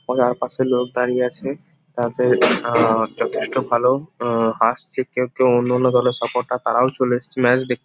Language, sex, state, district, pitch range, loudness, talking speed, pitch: Bengali, male, West Bengal, North 24 Parganas, 120-130 Hz, -19 LUFS, 175 wpm, 125 Hz